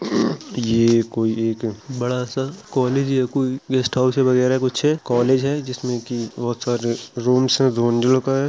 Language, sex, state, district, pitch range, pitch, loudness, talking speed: Hindi, male, Uttar Pradesh, Jalaun, 120-130 Hz, 125 Hz, -20 LUFS, 155 wpm